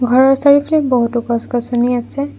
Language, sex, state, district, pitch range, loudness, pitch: Assamese, female, Assam, Kamrup Metropolitan, 240-280 Hz, -14 LUFS, 245 Hz